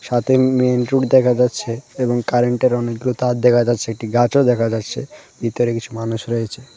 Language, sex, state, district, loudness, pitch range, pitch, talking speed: Bengali, male, Tripura, West Tripura, -18 LUFS, 115-125 Hz, 120 Hz, 175 wpm